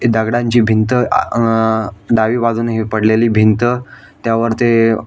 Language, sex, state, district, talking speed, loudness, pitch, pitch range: Marathi, male, Maharashtra, Aurangabad, 130 wpm, -14 LUFS, 115 Hz, 110-120 Hz